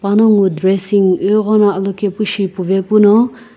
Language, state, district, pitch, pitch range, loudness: Sumi, Nagaland, Kohima, 200 Hz, 195-215 Hz, -13 LUFS